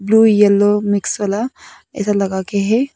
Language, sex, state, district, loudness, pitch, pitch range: Hindi, female, Arunachal Pradesh, Papum Pare, -15 LUFS, 205 Hz, 200-220 Hz